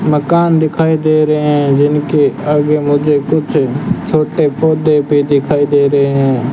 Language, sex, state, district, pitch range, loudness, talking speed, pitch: Hindi, male, Rajasthan, Bikaner, 145-155 Hz, -12 LUFS, 145 wpm, 150 Hz